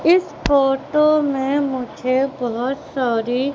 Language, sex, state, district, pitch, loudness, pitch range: Hindi, female, Madhya Pradesh, Katni, 270 Hz, -19 LUFS, 255-285 Hz